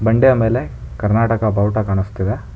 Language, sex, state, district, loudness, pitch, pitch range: Kannada, male, Karnataka, Bangalore, -17 LUFS, 110 Hz, 95-115 Hz